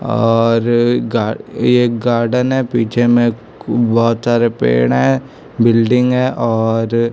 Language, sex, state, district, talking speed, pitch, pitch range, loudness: Hindi, male, Chhattisgarh, Raipur, 110 wpm, 120 Hz, 115-125 Hz, -14 LUFS